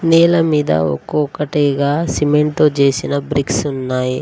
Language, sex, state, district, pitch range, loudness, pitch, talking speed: Telugu, female, Telangana, Mahabubabad, 135-150 Hz, -15 LUFS, 145 Hz, 130 wpm